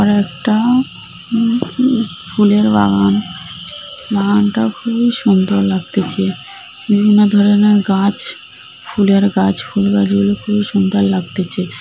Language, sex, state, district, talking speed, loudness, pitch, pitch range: Bengali, female, West Bengal, North 24 Parganas, 100 wpm, -14 LUFS, 205 Hz, 195-215 Hz